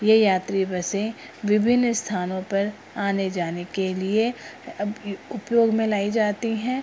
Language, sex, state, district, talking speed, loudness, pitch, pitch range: Hindi, female, Bihar, Purnia, 130 wpm, -24 LUFS, 205 Hz, 195-220 Hz